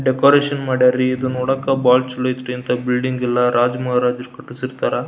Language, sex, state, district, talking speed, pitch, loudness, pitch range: Kannada, male, Karnataka, Belgaum, 130 wpm, 130 Hz, -18 LUFS, 125-130 Hz